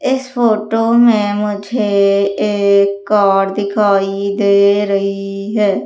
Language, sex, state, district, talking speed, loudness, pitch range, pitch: Hindi, female, Madhya Pradesh, Umaria, 100 wpm, -14 LUFS, 200-215 Hz, 200 Hz